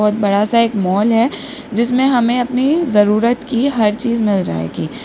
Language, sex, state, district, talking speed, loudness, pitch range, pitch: Hindi, female, Uttar Pradesh, Lalitpur, 180 wpm, -15 LUFS, 210-245 Hz, 230 Hz